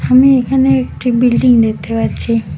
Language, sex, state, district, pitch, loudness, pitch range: Bengali, female, West Bengal, Cooch Behar, 245 Hz, -12 LUFS, 230-265 Hz